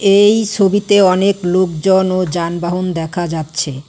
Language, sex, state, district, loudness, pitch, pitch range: Bengali, female, West Bengal, Alipurduar, -14 LUFS, 185 Hz, 170-195 Hz